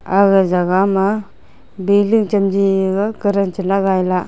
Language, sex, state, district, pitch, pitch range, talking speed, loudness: Wancho, female, Arunachal Pradesh, Longding, 195 Hz, 190-200 Hz, 125 wpm, -16 LUFS